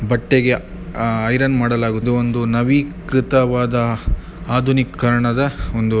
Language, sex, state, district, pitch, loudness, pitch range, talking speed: Kannada, male, Karnataka, Mysore, 120 Hz, -18 LUFS, 115-130 Hz, 80 wpm